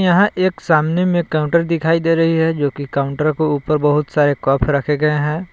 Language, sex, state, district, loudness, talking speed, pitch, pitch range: Hindi, male, Jharkhand, Palamu, -16 LUFS, 215 wpm, 155 Hz, 145-165 Hz